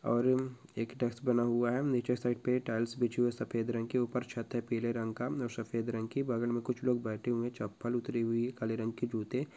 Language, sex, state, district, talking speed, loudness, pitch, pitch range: Hindi, female, Bihar, Purnia, 265 wpm, -34 LUFS, 120 Hz, 115-125 Hz